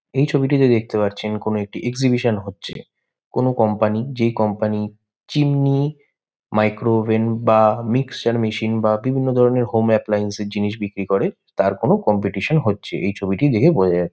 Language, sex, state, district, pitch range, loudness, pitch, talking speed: Bengali, male, West Bengal, Malda, 105-125 Hz, -19 LUFS, 110 Hz, 145 wpm